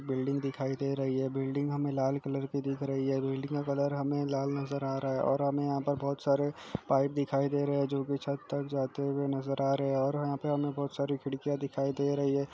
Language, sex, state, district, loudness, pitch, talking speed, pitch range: Hindi, male, Chhattisgarh, Jashpur, -32 LUFS, 140 Hz, 260 wpm, 135-140 Hz